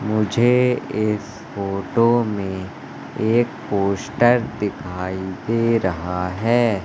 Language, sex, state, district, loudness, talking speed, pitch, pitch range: Hindi, male, Madhya Pradesh, Katni, -21 LUFS, 90 wpm, 105 Hz, 95-115 Hz